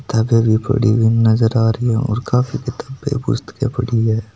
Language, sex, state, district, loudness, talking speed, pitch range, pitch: Hindi, male, Rajasthan, Nagaur, -17 LUFS, 180 wpm, 110-125 Hz, 115 Hz